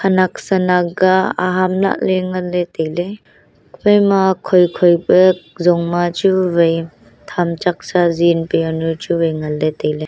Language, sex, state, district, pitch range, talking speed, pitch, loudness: Wancho, female, Arunachal Pradesh, Longding, 165-185 Hz, 150 wpm, 175 Hz, -15 LUFS